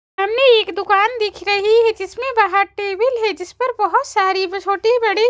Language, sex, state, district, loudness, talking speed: Hindi, female, Chhattisgarh, Raipur, -16 LUFS, 205 wpm